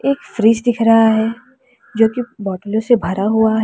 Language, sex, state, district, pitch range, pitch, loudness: Hindi, female, Uttar Pradesh, Lalitpur, 220-240 Hz, 225 Hz, -15 LUFS